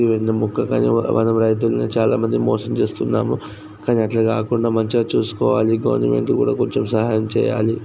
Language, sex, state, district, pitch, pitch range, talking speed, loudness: Telugu, male, Andhra Pradesh, Srikakulam, 110 Hz, 105-115 Hz, 130 wpm, -19 LUFS